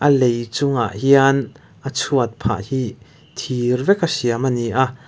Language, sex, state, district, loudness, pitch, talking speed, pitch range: Mizo, male, Mizoram, Aizawl, -19 LUFS, 130 Hz, 165 wpm, 120-140 Hz